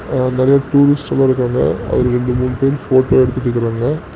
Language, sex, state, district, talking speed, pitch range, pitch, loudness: Tamil, male, Tamil Nadu, Namakkal, 175 wpm, 125-135 Hz, 130 Hz, -15 LUFS